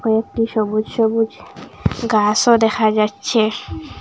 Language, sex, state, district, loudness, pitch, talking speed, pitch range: Bengali, female, Assam, Hailakandi, -17 LUFS, 220 Hz, 90 wpm, 215-225 Hz